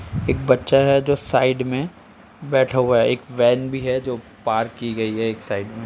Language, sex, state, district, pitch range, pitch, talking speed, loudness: Hindi, male, Uttar Pradesh, Etah, 115-130 Hz, 125 Hz, 215 wpm, -20 LUFS